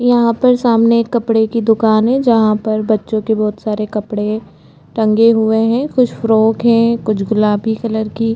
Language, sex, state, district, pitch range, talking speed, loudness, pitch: Hindi, female, Chhattisgarh, Jashpur, 215-230 Hz, 185 wpm, -14 LUFS, 220 Hz